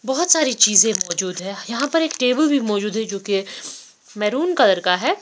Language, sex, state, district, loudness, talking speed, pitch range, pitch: Hindi, female, Bihar, Patna, -18 LUFS, 220 wpm, 200-285 Hz, 220 Hz